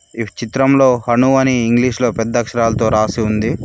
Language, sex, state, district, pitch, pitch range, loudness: Telugu, male, Telangana, Mahabubabad, 120 Hz, 115-125 Hz, -15 LUFS